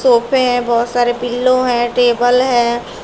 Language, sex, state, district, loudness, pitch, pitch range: Hindi, female, Uttar Pradesh, Shamli, -14 LUFS, 245 Hz, 240-250 Hz